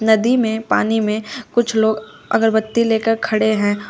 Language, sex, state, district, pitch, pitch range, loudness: Hindi, female, Uttar Pradesh, Shamli, 220 Hz, 215-225 Hz, -17 LUFS